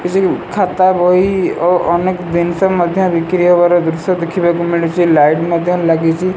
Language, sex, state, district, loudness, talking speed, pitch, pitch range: Odia, male, Odisha, Sambalpur, -13 LUFS, 140 wpm, 175 Hz, 170-185 Hz